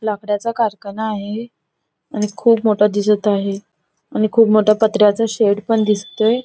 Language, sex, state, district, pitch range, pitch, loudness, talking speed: Marathi, female, Goa, North and South Goa, 205-225 Hz, 215 Hz, -17 LUFS, 140 wpm